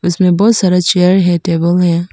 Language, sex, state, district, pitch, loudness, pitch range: Hindi, female, Arunachal Pradesh, Papum Pare, 180 Hz, -11 LUFS, 175-185 Hz